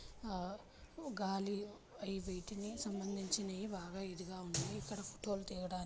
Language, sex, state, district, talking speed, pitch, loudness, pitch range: Telugu, female, Andhra Pradesh, Srikakulam, 145 wpm, 195 Hz, -43 LUFS, 185-205 Hz